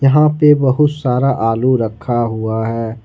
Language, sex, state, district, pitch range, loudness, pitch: Hindi, male, Jharkhand, Ranchi, 115-140 Hz, -15 LUFS, 125 Hz